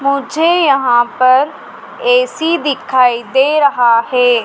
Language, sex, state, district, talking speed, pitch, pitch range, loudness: Hindi, female, Madhya Pradesh, Dhar, 110 wpm, 270 Hz, 245-300 Hz, -12 LUFS